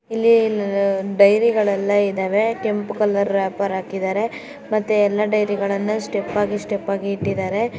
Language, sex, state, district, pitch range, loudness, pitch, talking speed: Kannada, female, Karnataka, Chamarajanagar, 200-215 Hz, -19 LUFS, 205 Hz, 115 wpm